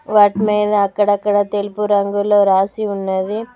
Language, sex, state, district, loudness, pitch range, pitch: Telugu, female, Telangana, Mahabubabad, -16 LUFS, 200-210 Hz, 205 Hz